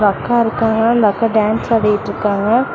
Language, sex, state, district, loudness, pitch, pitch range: Tamil, female, Tamil Nadu, Namakkal, -15 LUFS, 220 Hz, 210-230 Hz